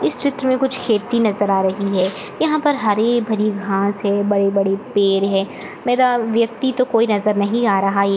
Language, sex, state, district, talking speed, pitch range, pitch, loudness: Hindi, female, Chhattisgarh, Jashpur, 190 wpm, 200-240 Hz, 210 Hz, -17 LUFS